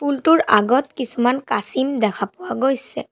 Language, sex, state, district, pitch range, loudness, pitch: Assamese, female, Assam, Sonitpur, 240-280 Hz, -19 LUFS, 265 Hz